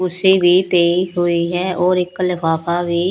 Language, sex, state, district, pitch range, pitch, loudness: Punjabi, female, Punjab, Pathankot, 175-185 Hz, 180 Hz, -16 LUFS